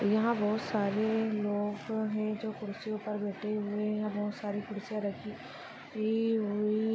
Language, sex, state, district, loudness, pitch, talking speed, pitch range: Hindi, female, Maharashtra, Nagpur, -33 LUFS, 215 Hz, 155 wpm, 210-220 Hz